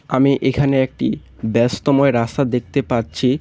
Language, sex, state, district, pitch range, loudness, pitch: Bengali, male, West Bengal, Cooch Behar, 120-140 Hz, -18 LUFS, 130 Hz